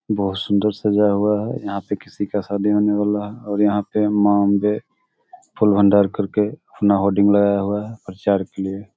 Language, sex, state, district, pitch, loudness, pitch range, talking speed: Hindi, male, Bihar, Samastipur, 105 Hz, -19 LUFS, 100-105 Hz, 185 wpm